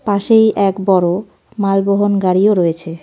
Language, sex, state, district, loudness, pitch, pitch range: Bengali, female, West Bengal, Darjeeling, -14 LUFS, 195 Hz, 185-205 Hz